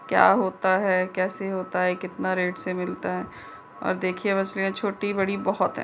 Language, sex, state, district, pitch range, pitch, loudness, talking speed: Hindi, female, Uttar Pradesh, Budaun, 180-195 Hz, 185 Hz, -25 LUFS, 185 wpm